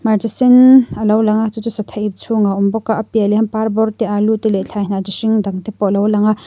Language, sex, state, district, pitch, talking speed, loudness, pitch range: Mizo, female, Mizoram, Aizawl, 215 Hz, 290 wpm, -15 LUFS, 205-220 Hz